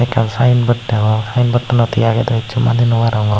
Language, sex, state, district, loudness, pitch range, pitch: Chakma, male, Tripura, Unakoti, -14 LUFS, 115-120 Hz, 115 Hz